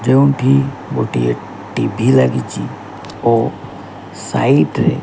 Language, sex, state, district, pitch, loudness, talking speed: Odia, male, Odisha, Khordha, 115 Hz, -16 LUFS, 85 wpm